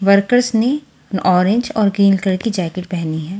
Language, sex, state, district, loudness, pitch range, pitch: Hindi, female, Haryana, Charkhi Dadri, -16 LUFS, 185-225 Hz, 200 Hz